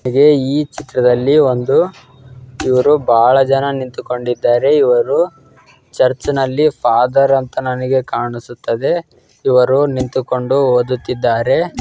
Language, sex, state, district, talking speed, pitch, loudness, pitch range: Kannada, male, Karnataka, Dakshina Kannada, 90 wpm, 130 Hz, -14 LUFS, 125-140 Hz